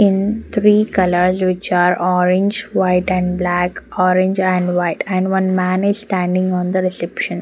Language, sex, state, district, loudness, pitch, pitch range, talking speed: English, female, Haryana, Jhajjar, -16 LUFS, 185 Hz, 180-190 Hz, 160 wpm